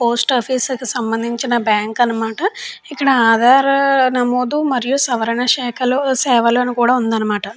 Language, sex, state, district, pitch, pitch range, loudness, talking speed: Telugu, female, Andhra Pradesh, Chittoor, 245 Hz, 235-265 Hz, -15 LUFS, 120 wpm